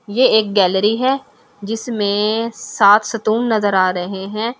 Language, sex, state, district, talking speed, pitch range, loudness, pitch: Hindi, female, Delhi, New Delhi, 145 wpm, 200-230 Hz, -16 LUFS, 215 Hz